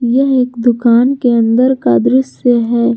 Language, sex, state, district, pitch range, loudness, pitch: Hindi, female, Jharkhand, Garhwa, 230-250 Hz, -12 LUFS, 240 Hz